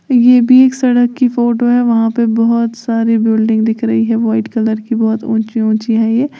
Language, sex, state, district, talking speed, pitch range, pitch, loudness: Hindi, female, Uttar Pradesh, Lalitpur, 215 wpm, 225-240 Hz, 230 Hz, -12 LUFS